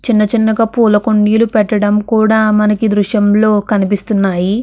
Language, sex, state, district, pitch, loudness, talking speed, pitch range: Telugu, female, Andhra Pradesh, Krishna, 210 Hz, -12 LUFS, 115 wpm, 205-220 Hz